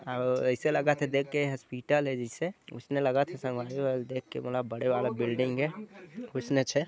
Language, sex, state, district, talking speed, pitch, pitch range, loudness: Chhattisgarhi, male, Chhattisgarh, Bilaspur, 185 wpm, 135 Hz, 125-145 Hz, -31 LUFS